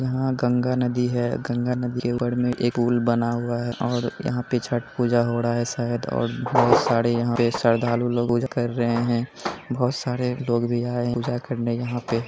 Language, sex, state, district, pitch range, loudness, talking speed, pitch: Hindi, male, Bihar, Jamui, 120-125 Hz, -23 LUFS, 210 wpm, 120 Hz